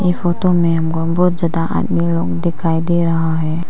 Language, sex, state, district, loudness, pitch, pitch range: Hindi, female, Arunachal Pradesh, Papum Pare, -16 LUFS, 165 Hz, 160-175 Hz